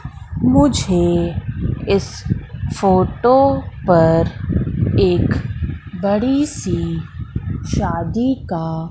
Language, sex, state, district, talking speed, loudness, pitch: Hindi, female, Madhya Pradesh, Katni, 60 wpm, -18 LUFS, 130 Hz